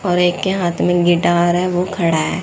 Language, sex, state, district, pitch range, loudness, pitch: Hindi, female, Haryana, Charkhi Dadri, 175-180 Hz, -16 LUFS, 175 Hz